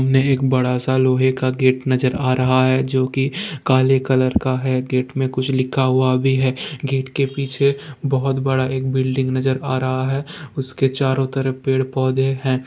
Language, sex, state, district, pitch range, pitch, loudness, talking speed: Hindi, male, Bihar, Jamui, 130-135 Hz, 130 Hz, -19 LUFS, 200 wpm